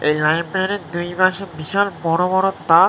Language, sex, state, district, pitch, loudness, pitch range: Bengali, male, West Bengal, North 24 Parganas, 175 Hz, -19 LUFS, 165-190 Hz